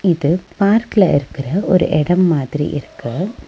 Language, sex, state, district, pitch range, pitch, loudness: Tamil, female, Tamil Nadu, Nilgiris, 145-185 Hz, 170 Hz, -16 LUFS